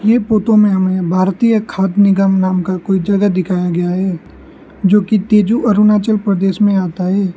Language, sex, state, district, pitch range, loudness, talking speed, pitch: Hindi, male, Arunachal Pradesh, Lower Dibang Valley, 185-210 Hz, -13 LUFS, 180 wpm, 195 Hz